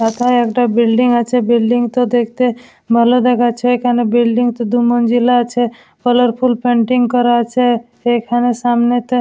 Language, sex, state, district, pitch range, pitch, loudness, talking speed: Bengali, female, West Bengal, Dakshin Dinajpur, 235-245 Hz, 240 Hz, -14 LUFS, 150 wpm